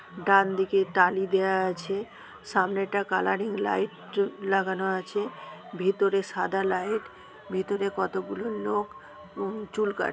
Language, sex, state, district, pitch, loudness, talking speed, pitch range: Bengali, female, West Bengal, North 24 Parganas, 195 Hz, -27 LUFS, 105 wpm, 190-205 Hz